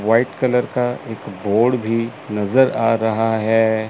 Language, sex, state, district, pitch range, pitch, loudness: Hindi, male, Chandigarh, Chandigarh, 110-125 Hz, 115 Hz, -18 LUFS